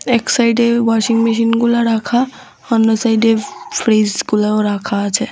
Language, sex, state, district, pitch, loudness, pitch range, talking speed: Bengali, female, Tripura, West Tripura, 230 Hz, -15 LUFS, 215-235 Hz, 100 wpm